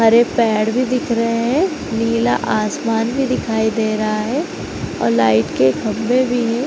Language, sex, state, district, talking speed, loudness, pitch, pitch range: Hindi, female, Uttar Pradesh, Varanasi, 170 wpm, -17 LUFS, 230 Hz, 215-245 Hz